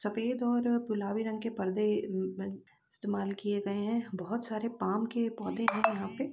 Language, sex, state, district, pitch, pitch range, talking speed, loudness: Hindi, female, Uttar Pradesh, Jalaun, 215 Hz, 200-230 Hz, 210 wpm, -33 LUFS